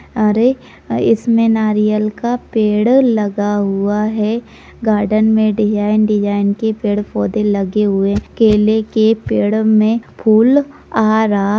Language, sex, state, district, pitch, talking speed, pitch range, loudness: Hindi, female, Bihar, Purnia, 215 Hz, 120 wpm, 210-220 Hz, -14 LUFS